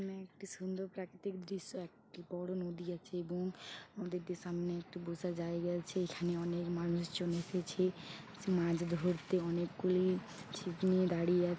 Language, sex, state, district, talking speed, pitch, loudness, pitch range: Bengali, female, West Bengal, Paschim Medinipur, 150 wpm, 180 Hz, -38 LUFS, 175-185 Hz